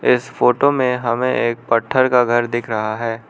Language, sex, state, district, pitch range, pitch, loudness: Hindi, male, Arunachal Pradesh, Lower Dibang Valley, 115-125 Hz, 120 Hz, -17 LUFS